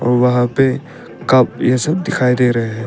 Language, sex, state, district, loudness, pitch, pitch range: Hindi, male, Arunachal Pradesh, Papum Pare, -15 LUFS, 125 Hz, 120-130 Hz